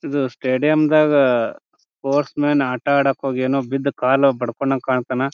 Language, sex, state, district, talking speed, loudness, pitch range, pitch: Kannada, male, Karnataka, Bijapur, 125 wpm, -18 LUFS, 130-140 Hz, 135 Hz